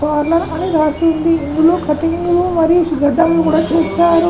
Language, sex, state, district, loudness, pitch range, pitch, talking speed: Telugu, male, Telangana, Karimnagar, -14 LUFS, 315-335 Hz, 330 Hz, 125 wpm